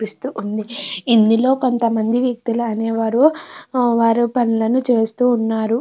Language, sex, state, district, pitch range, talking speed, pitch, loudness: Telugu, female, Andhra Pradesh, Krishna, 225-245 Hz, 115 wpm, 230 Hz, -17 LUFS